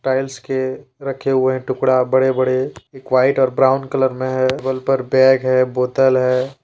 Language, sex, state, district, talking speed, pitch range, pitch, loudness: Hindi, male, Jharkhand, Deoghar, 190 wpm, 130-135 Hz, 130 Hz, -17 LUFS